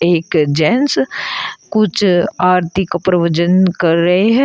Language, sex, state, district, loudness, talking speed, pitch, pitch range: Hindi, female, Uttar Pradesh, Shamli, -14 LUFS, 120 wpm, 180 Hz, 170-190 Hz